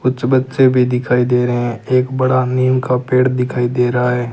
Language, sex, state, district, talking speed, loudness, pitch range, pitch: Hindi, male, Rajasthan, Bikaner, 220 wpm, -15 LUFS, 125-130 Hz, 125 Hz